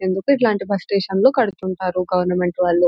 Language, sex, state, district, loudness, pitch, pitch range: Telugu, female, Telangana, Nalgonda, -19 LUFS, 185 Hz, 180-200 Hz